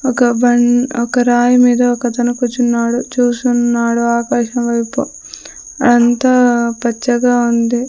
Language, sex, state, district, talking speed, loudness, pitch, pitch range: Telugu, female, Andhra Pradesh, Sri Satya Sai, 100 wpm, -13 LUFS, 240 Hz, 235-245 Hz